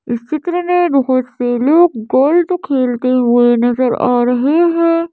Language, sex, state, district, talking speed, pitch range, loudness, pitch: Hindi, female, Madhya Pradesh, Bhopal, 150 wpm, 245-335 Hz, -13 LUFS, 260 Hz